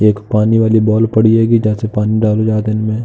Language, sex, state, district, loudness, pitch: Hindi, male, Uttar Pradesh, Jalaun, -13 LUFS, 110 Hz